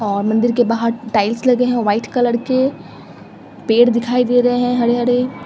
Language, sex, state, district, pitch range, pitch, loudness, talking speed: Hindi, female, Delhi, New Delhi, 230-245 Hz, 240 Hz, -16 LUFS, 185 wpm